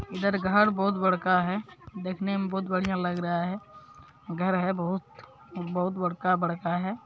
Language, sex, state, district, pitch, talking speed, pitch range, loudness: Maithili, male, Bihar, Supaul, 185 Hz, 145 wpm, 180-195 Hz, -28 LUFS